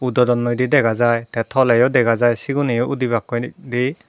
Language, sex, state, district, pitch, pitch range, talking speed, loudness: Chakma, female, Tripura, Dhalai, 120 Hz, 120-130 Hz, 130 wpm, -18 LUFS